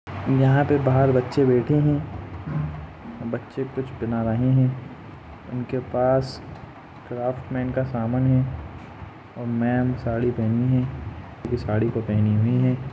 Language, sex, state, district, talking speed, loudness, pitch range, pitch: Hindi, male, Jharkhand, Jamtara, 125 wpm, -23 LUFS, 115-130 Hz, 125 Hz